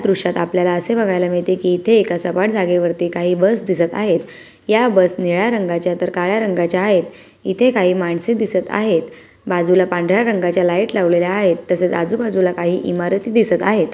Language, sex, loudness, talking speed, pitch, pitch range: Marathi, female, -17 LUFS, 170 wpm, 180 Hz, 175-200 Hz